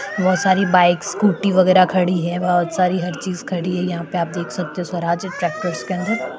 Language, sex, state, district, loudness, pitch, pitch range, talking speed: Hindi, female, Maharashtra, Chandrapur, -19 LUFS, 180 Hz, 175-185 Hz, 205 wpm